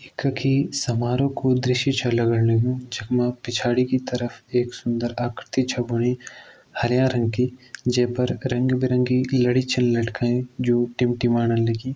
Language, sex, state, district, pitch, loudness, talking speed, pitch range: Garhwali, male, Uttarakhand, Tehri Garhwal, 125 Hz, -22 LUFS, 140 wpm, 120-130 Hz